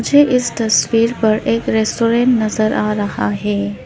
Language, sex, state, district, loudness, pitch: Hindi, female, Arunachal Pradesh, Papum Pare, -15 LUFS, 215 Hz